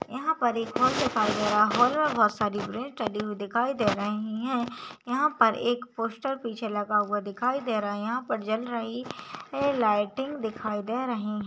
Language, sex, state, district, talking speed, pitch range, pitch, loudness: Hindi, female, Maharashtra, Nagpur, 200 wpm, 210-255 Hz, 230 Hz, -27 LUFS